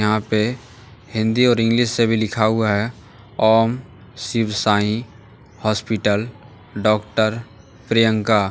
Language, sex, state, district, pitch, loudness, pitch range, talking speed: Hindi, male, Jharkhand, Deoghar, 110 Hz, -19 LUFS, 105-115 Hz, 120 wpm